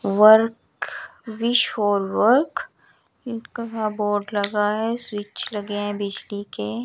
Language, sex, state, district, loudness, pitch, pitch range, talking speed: Hindi, female, Chandigarh, Chandigarh, -22 LUFS, 210 Hz, 205-230 Hz, 120 wpm